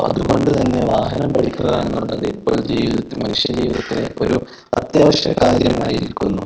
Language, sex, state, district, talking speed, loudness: Malayalam, male, Kerala, Kozhikode, 100 wpm, -17 LUFS